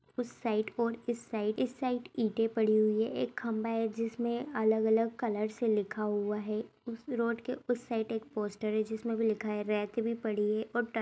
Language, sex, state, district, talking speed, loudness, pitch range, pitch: Hindi, female, Bihar, East Champaran, 225 wpm, -33 LUFS, 215-235 Hz, 225 Hz